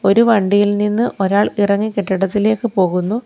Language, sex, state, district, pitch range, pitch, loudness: Malayalam, female, Kerala, Kollam, 195-220 Hz, 205 Hz, -16 LUFS